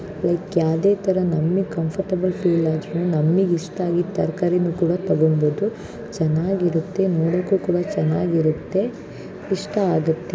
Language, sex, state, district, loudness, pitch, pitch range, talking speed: Kannada, male, Karnataka, Dharwad, -21 LUFS, 175 Hz, 165-190 Hz, 110 wpm